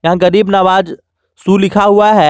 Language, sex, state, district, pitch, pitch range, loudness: Hindi, male, Jharkhand, Garhwa, 195 Hz, 185-205 Hz, -10 LUFS